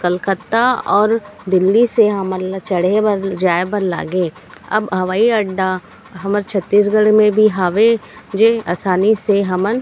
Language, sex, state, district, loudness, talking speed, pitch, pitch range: Chhattisgarhi, female, Chhattisgarh, Raigarh, -16 LUFS, 145 wpm, 200 Hz, 185-215 Hz